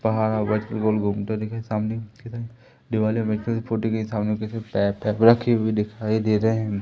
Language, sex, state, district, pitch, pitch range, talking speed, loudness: Hindi, male, Madhya Pradesh, Umaria, 110 Hz, 105-115 Hz, 95 wpm, -23 LUFS